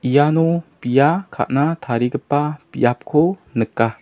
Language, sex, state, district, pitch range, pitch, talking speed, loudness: Garo, male, Meghalaya, South Garo Hills, 125-155 Hz, 145 Hz, 90 wpm, -19 LUFS